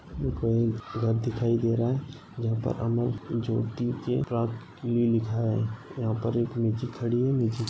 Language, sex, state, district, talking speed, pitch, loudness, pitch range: Marathi, male, Maharashtra, Sindhudurg, 180 wpm, 115 Hz, -28 LUFS, 115-120 Hz